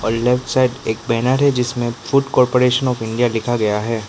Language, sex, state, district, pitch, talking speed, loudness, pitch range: Hindi, male, Arunachal Pradesh, Lower Dibang Valley, 120 Hz, 190 wpm, -17 LUFS, 115-125 Hz